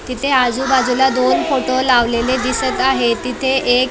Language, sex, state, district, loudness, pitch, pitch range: Marathi, female, Maharashtra, Dhule, -15 LUFS, 255 Hz, 250-265 Hz